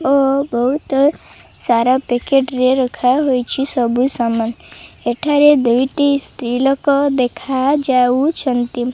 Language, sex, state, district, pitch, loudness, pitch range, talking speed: Odia, female, Odisha, Malkangiri, 260 Hz, -16 LUFS, 245-280 Hz, 85 wpm